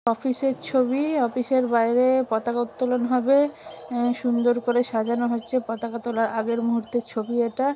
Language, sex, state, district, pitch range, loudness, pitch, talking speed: Bengali, female, West Bengal, Malda, 235-255 Hz, -23 LUFS, 240 Hz, 155 wpm